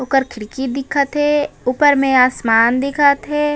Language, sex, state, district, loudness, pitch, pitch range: Chhattisgarhi, female, Chhattisgarh, Raigarh, -15 LUFS, 275 Hz, 255-290 Hz